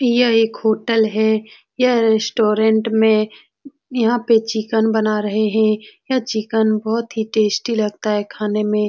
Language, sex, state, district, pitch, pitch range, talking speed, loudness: Hindi, female, Bihar, Saran, 220 Hz, 215-230 Hz, 150 wpm, -18 LUFS